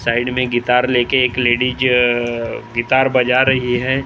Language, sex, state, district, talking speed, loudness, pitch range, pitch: Hindi, male, Maharashtra, Gondia, 220 wpm, -16 LUFS, 120-130 Hz, 125 Hz